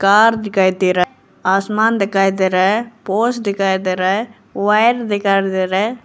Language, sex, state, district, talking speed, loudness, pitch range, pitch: Hindi, female, Arunachal Pradesh, Lower Dibang Valley, 190 wpm, -16 LUFS, 190-220 Hz, 195 Hz